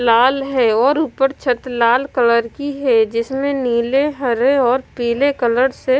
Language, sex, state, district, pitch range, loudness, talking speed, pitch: Hindi, female, Punjab, Kapurthala, 235-275 Hz, -16 LUFS, 160 wpm, 255 Hz